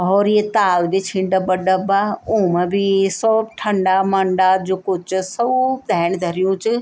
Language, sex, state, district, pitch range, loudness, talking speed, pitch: Garhwali, female, Uttarakhand, Tehri Garhwal, 185-210 Hz, -17 LUFS, 165 wpm, 190 Hz